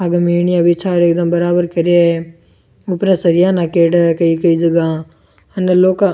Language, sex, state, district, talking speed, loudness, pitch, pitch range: Rajasthani, male, Rajasthan, Churu, 175 wpm, -13 LUFS, 175 Hz, 170-180 Hz